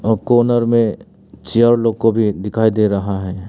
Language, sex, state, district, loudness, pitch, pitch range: Hindi, male, Arunachal Pradesh, Papum Pare, -15 LUFS, 110 Hz, 105-115 Hz